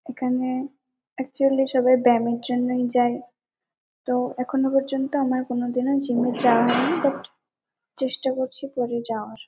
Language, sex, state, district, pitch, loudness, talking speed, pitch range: Bengali, female, West Bengal, Kolkata, 255 Hz, -23 LUFS, 125 wpm, 245-270 Hz